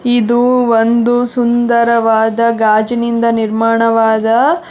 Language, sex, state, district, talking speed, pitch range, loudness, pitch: Kannada, female, Karnataka, Bangalore, 65 wpm, 225-240 Hz, -12 LUFS, 235 Hz